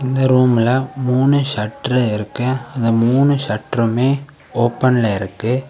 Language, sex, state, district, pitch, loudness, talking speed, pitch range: Tamil, male, Tamil Nadu, Kanyakumari, 125 Hz, -17 LUFS, 105 wpm, 115-130 Hz